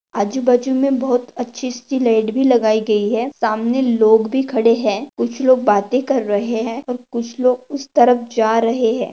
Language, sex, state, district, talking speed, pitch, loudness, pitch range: Hindi, female, Maharashtra, Pune, 190 wpm, 245 Hz, -17 LUFS, 225-255 Hz